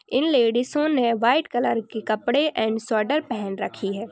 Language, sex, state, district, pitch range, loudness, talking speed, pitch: Hindi, female, Bihar, Bhagalpur, 220-270 Hz, -23 LUFS, 175 wpm, 240 Hz